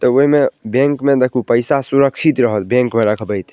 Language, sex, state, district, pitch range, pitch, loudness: Maithili, male, Bihar, Madhepura, 115-140 Hz, 125 Hz, -15 LUFS